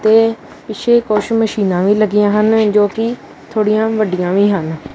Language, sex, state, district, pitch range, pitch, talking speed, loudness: Punjabi, male, Punjab, Kapurthala, 205-220 Hz, 215 Hz, 145 wpm, -14 LUFS